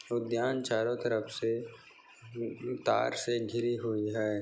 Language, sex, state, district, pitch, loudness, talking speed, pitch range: Hindi, male, Maharashtra, Chandrapur, 115 Hz, -33 LUFS, 135 wpm, 110-120 Hz